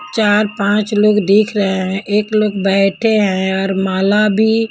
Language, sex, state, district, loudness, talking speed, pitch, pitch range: Hindi, female, Punjab, Kapurthala, -14 LUFS, 165 wpm, 205 Hz, 195-215 Hz